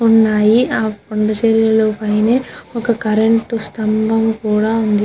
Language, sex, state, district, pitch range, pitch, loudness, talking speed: Telugu, female, Andhra Pradesh, Guntur, 215-225 Hz, 220 Hz, -15 LUFS, 120 wpm